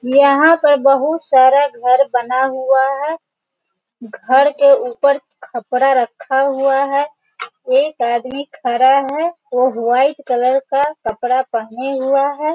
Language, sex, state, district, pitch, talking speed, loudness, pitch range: Hindi, female, Bihar, Sitamarhi, 270 Hz, 130 wpm, -15 LUFS, 255-285 Hz